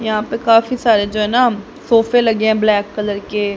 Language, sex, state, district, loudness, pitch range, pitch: Hindi, male, Haryana, Rohtak, -15 LUFS, 210-230 Hz, 220 Hz